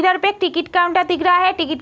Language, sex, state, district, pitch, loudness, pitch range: Hindi, female, Uttar Pradesh, Deoria, 360 Hz, -17 LUFS, 345-370 Hz